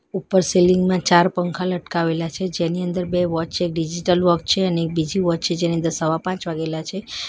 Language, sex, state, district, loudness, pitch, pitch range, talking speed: Gujarati, female, Gujarat, Valsad, -20 LUFS, 175 Hz, 165-185 Hz, 220 wpm